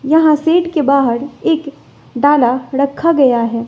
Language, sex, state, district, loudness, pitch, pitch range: Hindi, female, Bihar, West Champaran, -13 LUFS, 280 Hz, 250-315 Hz